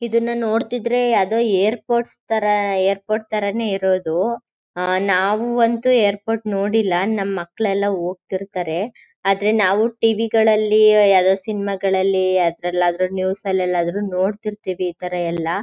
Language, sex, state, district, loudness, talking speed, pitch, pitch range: Kannada, female, Karnataka, Chamarajanagar, -19 LUFS, 110 wpm, 200 Hz, 185-220 Hz